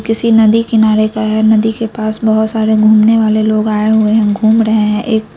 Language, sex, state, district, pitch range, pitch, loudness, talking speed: Hindi, female, Bihar, Muzaffarpur, 215-220 Hz, 220 Hz, -11 LUFS, 235 wpm